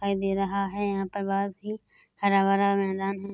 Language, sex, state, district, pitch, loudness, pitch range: Hindi, female, Chhattisgarh, Korba, 195 Hz, -27 LUFS, 195-200 Hz